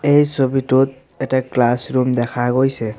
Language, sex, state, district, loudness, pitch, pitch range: Assamese, male, Assam, Sonitpur, -17 LUFS, 130 Hz, 125-135 Hz